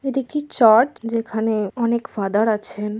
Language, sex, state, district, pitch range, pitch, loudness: Bengali, female, West Bengal, North 24 Parganas, 210-250 Hz, 225 Hz, -20 LUFS